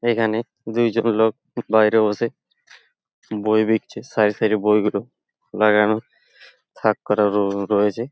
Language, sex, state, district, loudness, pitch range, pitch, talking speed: Bengali, male, West Bengal, Paschim Medinipur, -20 LUFS, 105-115 Hz, 110 Hz, 120 wpm